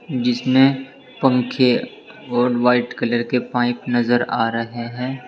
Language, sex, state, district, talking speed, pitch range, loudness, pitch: Hindi, male, Uttar Pradesh, Saharanpur, 125 wpm, 120-130 Hz, -19 LUFS, 125 Hz